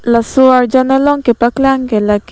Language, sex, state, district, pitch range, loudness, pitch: Karbi, female, Assam, Karbi Anglong, 235-270 Hz, -11 LUFS, 255 Hz